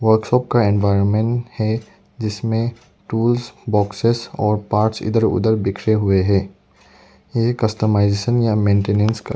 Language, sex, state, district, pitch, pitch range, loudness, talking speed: Hindi, male, Arunachal Pradesh, Lower Dibang Valley, 110 Hz, 105-115 Hz, -18 LUFS, 120 wpm